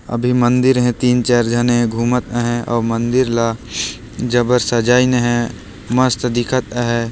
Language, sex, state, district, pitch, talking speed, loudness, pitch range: Hindi, male, Chhattisgarh, Jashpur, 120 Hz, 150 wpm, -16 LUFS, 120-125 Hz